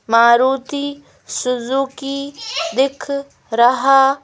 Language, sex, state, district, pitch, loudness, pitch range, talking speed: Hindi, female, Madhya Pradesh, Bhopal, 270 Hz, -17 LUFS, 250-280 Hz, 55 wpm